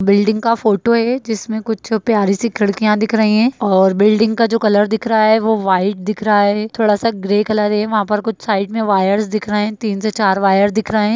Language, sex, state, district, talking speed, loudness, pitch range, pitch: Hindi, female, Bihar, Darbhanga, 240 wpm, -15 LUFS, 205-220 Hz, 215 Hz